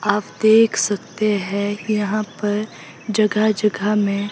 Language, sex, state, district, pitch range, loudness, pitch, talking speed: Hindi, female, Himachal Pradesh, Shimla, 205-215 Hz, -19 LUFS, 210 Hz, 125 wpm